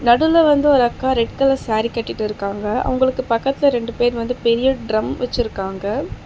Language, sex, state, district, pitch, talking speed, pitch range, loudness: Tamil, female, Tamil Nadu, Chennai, 240 Hz, 155 wpm, 225-260 Hz, -18 LUFS